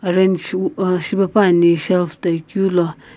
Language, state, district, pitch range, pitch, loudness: Sumi, Nagaland, Kohima, 170-190 Hz, 180 Hz, -17 LUFS